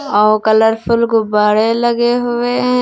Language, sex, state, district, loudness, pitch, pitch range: Hindi, female, Uttar Pradesh, Lucknow, -13 LUFS, 230 Hz, 220-240 Hz